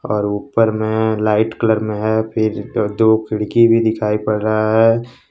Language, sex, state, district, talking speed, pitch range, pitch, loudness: Hindi, male, Jharkhand, Ranchi, 170 wpm, 110-115 Hz, 110 Hz, -16 LUFS